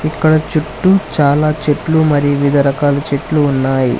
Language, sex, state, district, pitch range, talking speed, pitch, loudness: Telugu, male, Telangana, Hyderabad, 140-155 Hz, 135 wpm, 145 Hz, -13 LUFS